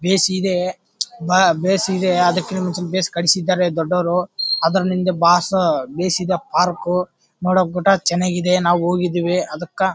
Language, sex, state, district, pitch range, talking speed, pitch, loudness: Kannada, male, Karnataka, Bellary, 175-185 Hz, 120 wpm, 180 Hz, -18 LUFS